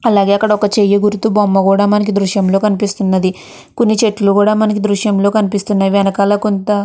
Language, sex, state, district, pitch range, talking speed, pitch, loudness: Telugu, female, Andhra Pradesh, Chittoor, 200-210 Hz, 160 wpm, 205 Hz, -13 LUFS